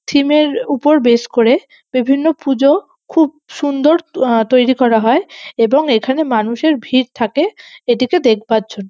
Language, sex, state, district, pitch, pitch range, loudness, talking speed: Bengali, female, West Bengal, North 24 Parganas, 270 Hz, 235-305 Hz, -14 LUFS, 150 wpm